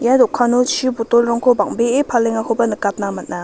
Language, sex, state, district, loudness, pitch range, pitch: Garo, female, Meghalaya, West Garo Hills, -16 LUFS, 225-250 Hz, 235 Hz